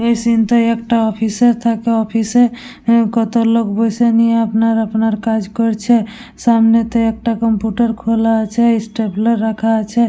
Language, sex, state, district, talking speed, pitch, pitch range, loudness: Bengali, female, West Bengal, Purulia, 150 wpm, 230 Hz, 225-230 Hz, -15 LUFS